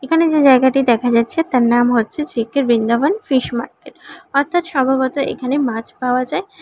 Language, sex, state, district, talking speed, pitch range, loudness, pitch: Bengali, female, Karnataka, Bangalore, 165 wpm, 240-300 Hz, -16 LUFS, 265 Hz